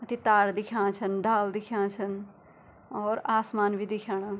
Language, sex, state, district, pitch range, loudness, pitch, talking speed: Garhwali, female, Uttarakhand, Tehri Garhwal, 200-220 Hz, -28 LUFS, 205 Hz, 150 wpm